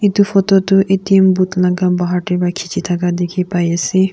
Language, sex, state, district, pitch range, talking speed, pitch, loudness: Nagamese, female, Nagaland, Kohima, 180-195 Hz, 190 wpm, 180 Hz, -15 LUFS